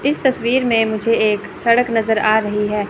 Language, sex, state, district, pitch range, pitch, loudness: Hindi, female, Chandigarh, Chandigarh, 215-240 Hz, 225 Hz, -16 LUFS